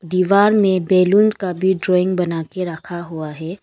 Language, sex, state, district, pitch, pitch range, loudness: Hindi, female, Arunachal Pradesh, Longding, 185 Hz, 170-190 Hz, -17 LUFS